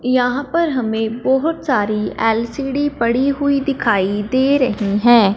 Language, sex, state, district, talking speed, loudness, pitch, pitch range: Hindi, male, Punjab, Fazilka, 135 wpm, -17 LUFS, 250 Hz, 220-275 Hz